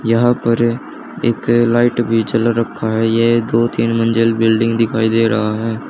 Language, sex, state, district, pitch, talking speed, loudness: Hindi, male, Haryana, Charkhi Dadri, 115 Hz, 175 wpm, -15 LUFS